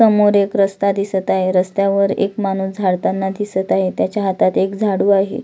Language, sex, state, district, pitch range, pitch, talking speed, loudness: Marathi, female, Maharashtra, Solapur, 190-200 Hz, 195 Hz, 185 wpm, -17 LUFS